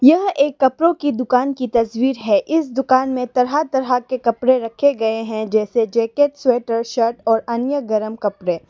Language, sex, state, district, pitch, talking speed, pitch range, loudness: Hindi, female, Arunachal Pradesh, Lower Dibang Valley, 250 Hz, 180 wpm, 230-275 Hz, -18 LUFS